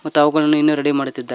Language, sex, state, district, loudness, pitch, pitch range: Kannada, male, Karnataka, Koppal, -16 LUFS, 150 Hz, 140-150 Hz